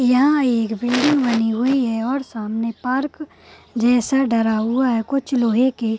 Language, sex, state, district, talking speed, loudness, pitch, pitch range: Hindi, female, Bihar, Purnia, 170 wpm, -19 LUFS, 245 Hz, 225-265 Hz